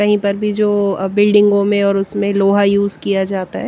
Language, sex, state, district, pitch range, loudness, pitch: Hindi, female, Punjab, Kapurthala, 200-205 Hz, -15 LUFS, 200 Hz